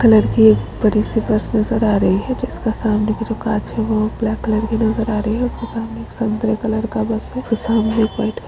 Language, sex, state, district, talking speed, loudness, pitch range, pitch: Hindi, female, Chhattisgarh, Bilaspur, 260 wpm, -18 LUFS, 215-225 Hz, 220 Hz